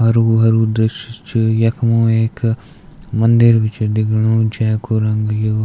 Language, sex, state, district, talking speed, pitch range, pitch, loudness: Garhwali, male, Uttarakhand, Tehri Garhwal, 140 wpm, 110-115 Hz, 115 Hz, -15 LUFS